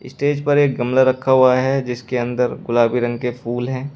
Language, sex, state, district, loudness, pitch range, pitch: Hindi, male, Uttar Pradesh, Shamli, -18 LUFS, 120-130 Hz, 125 Hz